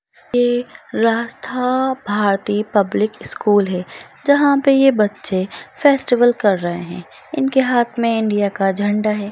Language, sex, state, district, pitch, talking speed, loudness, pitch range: Hindi, female, Bihar, Lakhisarai, 215 Hz, 135 wpm, -17 LUFS, 205-250 Hz